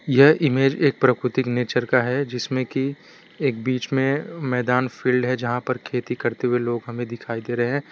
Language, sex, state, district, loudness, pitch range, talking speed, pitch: Hindi, male, Gujarat, Valsad, -22 LUFS, 120-135 Hz, 190 wpm, 125 Hz